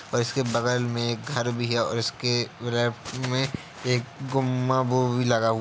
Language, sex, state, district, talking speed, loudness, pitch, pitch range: Hindi, male, Uttar Pradesh, Jalaun, 205 wpm, -26 LUFS, 120 Hz, 120-130 Hz